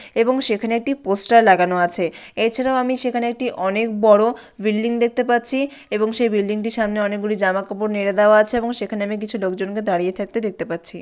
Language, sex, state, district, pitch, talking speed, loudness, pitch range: Bengali, female, West Bengal, Malda, 215 Hz, 195 wpm, -19 LUFS, 200-235 Hz